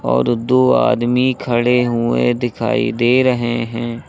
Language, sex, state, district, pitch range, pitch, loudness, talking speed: Hindi, male, Uttar Pradesh, Lucknow, 115-125 Hz, 120 Hz, -16 LUFS, 130 wpm